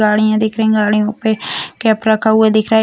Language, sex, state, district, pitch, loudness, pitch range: Hindi, female, Bihar, Sitamarhi, 220 Hz, -14 LUFS, 215-220 Hz